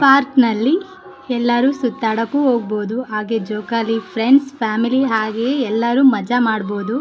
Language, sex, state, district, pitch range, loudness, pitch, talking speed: Kannada, female, Karnataka, Bellary, 220-270 Hz, -17 LUFS, 240 Hz, 110 wpm